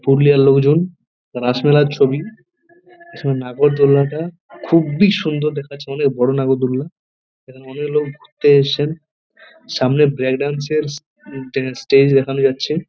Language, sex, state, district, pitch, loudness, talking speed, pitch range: Bengali, male, West Bengal, Purulia, 145 Hz, -16 LUFS, 115 wpm, 135-155 Hz